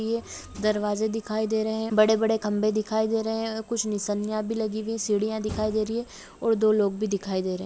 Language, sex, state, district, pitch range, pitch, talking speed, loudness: Hindi, female, Chhattisgarh, Rajnandgaon, 210-220 Hz, 215 Hz, 235 wpm, -26 LUFS